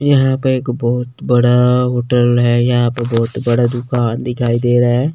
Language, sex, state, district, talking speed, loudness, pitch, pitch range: Hindi, male, Chandigarh, Chandigarh, 185 wpm, -14 LUFS, 120 Hz, 120-125 Hz